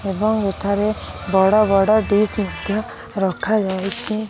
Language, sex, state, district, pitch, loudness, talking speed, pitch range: Odia, female, Odisha, Khordha, 205 Hz, -18 LUFS, 110 wpm, 195-215 Hz